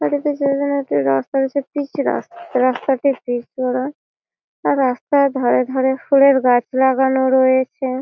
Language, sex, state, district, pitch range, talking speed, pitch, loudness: Bengali, female, West Bengal, Malda, 255-280 Hz, 110 wpm, 265 Hz, -17 LUFS